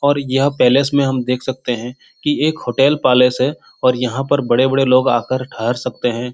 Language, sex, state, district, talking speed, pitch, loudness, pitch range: Hindi, male, Bihar, Supaul, 210 wpm, 130 Hz, -16 LUFS, 125-135 Hz